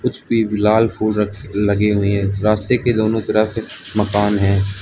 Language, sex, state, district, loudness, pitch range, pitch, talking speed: Hindi, male, Arunachal Pradesh, Lower Dibang Valley, -17 LUFS, 100-110 Hz, 105 Hz, 150 wpm